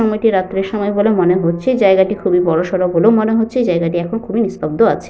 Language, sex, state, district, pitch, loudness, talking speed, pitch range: Bengali, female, Jharkhand, Sahebganj, 200 Hz, -15 LUFS, 225 wpm, 180-220 Hz